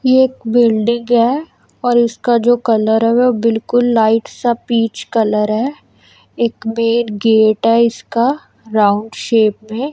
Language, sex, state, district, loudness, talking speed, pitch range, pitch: Hindi, female, Punjab, Kapurthala, -14 LUFS, 140 wpm, 225-240 Hz, 230 Hz